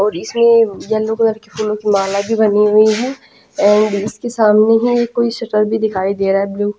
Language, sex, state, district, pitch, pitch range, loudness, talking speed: Hindi, female, Punjab, Pathankot, 215 Hz, 205-230 Hz, -14 LUFS, 210 wpm